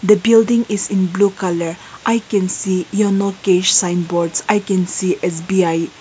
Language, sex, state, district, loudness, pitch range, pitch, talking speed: English, female, Nagaland, Kohima, -16 LUFS, 180-205 Hz, 190 Hz, 170 wpm